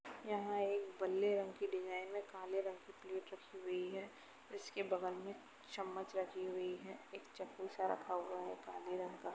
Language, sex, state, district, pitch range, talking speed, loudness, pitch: Hindi, female, Uttar Pradesh, Etah, 185-205 Hz, 190 wpm, -44 LUFS, 195 Hz